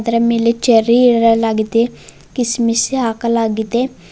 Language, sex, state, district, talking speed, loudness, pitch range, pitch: Kannada, female, Karnataka, Bidar, 85 wpm, -14 LUFS, 230-240 Hz, 230 Hz